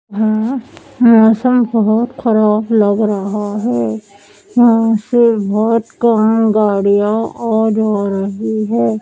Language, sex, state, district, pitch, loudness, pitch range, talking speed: Hindi, female, Madhya Pradesh, Dhar, 220 Hz, -13 LUFS, 205-225 Hz, 105 wpm